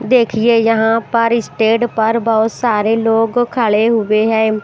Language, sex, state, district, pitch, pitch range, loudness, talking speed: Hindi, female, Himachal Pradesh, Shimla, 225 Hz, 220-230 Hz, -14 LUFS, 140 wpm